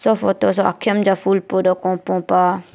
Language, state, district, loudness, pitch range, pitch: Nyishi, Arunachal Pradesh, Papum Pare, -17 LUFS, 180-195 Hz, 185 Hz